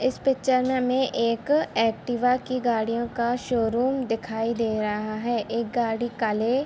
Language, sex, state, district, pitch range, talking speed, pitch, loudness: Hindi, female, Bihar, Sitamarhi, 225-255 Hz, 160 wpm, 235 Hz, -25 LUFS